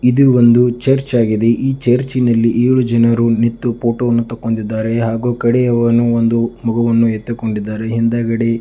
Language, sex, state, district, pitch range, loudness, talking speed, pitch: Kannada, male, Karnataka, Dakshina Kannada, 115-120 Hz, -14 LUFS, 120 wpm, 115 Hz